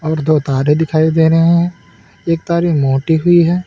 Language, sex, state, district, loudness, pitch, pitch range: Hindi, male, Uttar Pradesh, Lalitpur, -13 LUFS, 160 Hz, 155-170 Hz